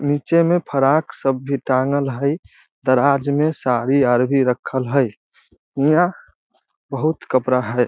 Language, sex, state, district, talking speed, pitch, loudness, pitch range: Maithili, male, Bihar, Samastipur, 150 wpm, 140 Hz, -19 LUFS, 130-145 Hz